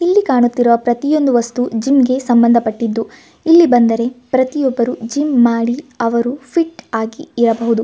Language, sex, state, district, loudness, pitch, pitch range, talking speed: Kannada, female, Karnataka, Gulbarga, -14 LUFS, 245 Hz, 235-275 Hz, 120 wpm